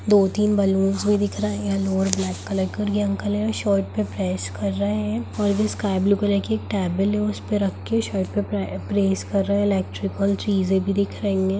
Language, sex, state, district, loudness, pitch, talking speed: Hindi, female, Bihar, Gaya, -23 LUFS, 110 Hz, 245 wpm